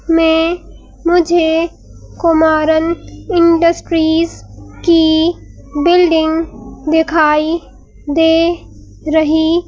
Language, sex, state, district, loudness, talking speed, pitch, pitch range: Hindi, female, Madhya Pradesh, Bhopal, -13 LUFS, 55 wpm, 325 Hz, 315-335 Hz